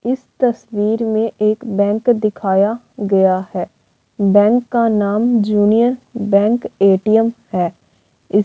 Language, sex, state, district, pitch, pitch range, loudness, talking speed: Hindi, female, Uttar Pradesh, Varanasi, 215 Hz, 200-230 Hz, -16 LUFS, 120 wpm